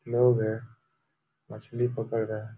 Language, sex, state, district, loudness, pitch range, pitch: Hindi, male, Uttar Pradesh, Jalaun, -28 LUFS, 110-120 Hz, 115 Hz